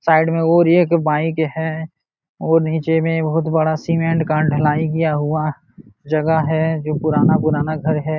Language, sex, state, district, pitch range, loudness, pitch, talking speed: Hindi, male, Uttar Pradesh, Jalaun, 155-160 Hz, -17 LUFS, 160 Hz, 160 wpm